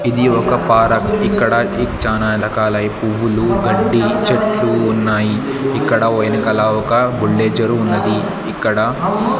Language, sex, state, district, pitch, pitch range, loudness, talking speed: Telugu, male, Andhra Pradesh, Sri Satya Sai, 110 Hz, 110-120 Hz, -15 LUFS, 120 wpm